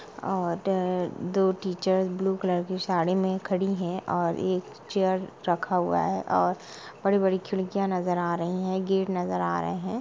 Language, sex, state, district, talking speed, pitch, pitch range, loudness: Hindi, female, Jharkhand, Sahebganj, 160 wpm, 185 Hz, 180-190 Hz, -27 LUFS